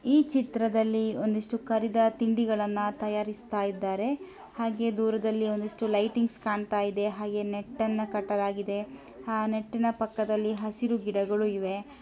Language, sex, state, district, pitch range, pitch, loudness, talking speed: Kannada, female, Karnataka, Mysore, 210-230 Hz, 215 Hz, -29 LUFS, 115 wpm